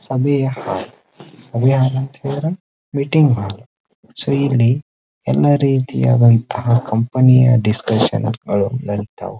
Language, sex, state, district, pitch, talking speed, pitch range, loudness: Kannada, male, Karnataka, Dharwad, 125 Hz, 85 wpm, 110-135 Hz, -16 LUFS